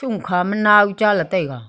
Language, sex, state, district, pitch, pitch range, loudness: Wancho, female, Arunachal Pradesh, Longding, 205 Hz, 180-210 Hz, -17 LUFS